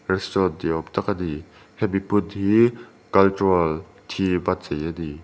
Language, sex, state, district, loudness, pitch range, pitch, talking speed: Mizo, male, Mizoram, Aizawl, -22 LUFS, 85-100 Hz, 95 Hz, 170 wpm